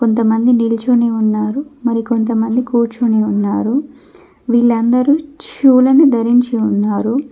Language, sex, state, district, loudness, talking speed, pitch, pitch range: Telugu, female, Telangana, Mahabubabad, -14 LUFS, 100 wpm, 240 Hz, 225-265 Hz